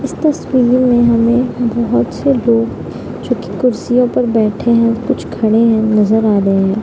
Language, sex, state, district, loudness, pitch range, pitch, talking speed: Hindi, female, Bihar, Madhepura, -13 LUFS, 220-250 Hz, 235 Hz, 175 wpm